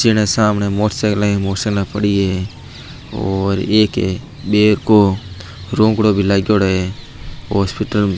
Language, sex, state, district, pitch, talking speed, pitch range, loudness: Marwari, male, Rajasthan, Nagaur, 105 Hz, 75 wpm, 100-110 Hz, -16 LUFS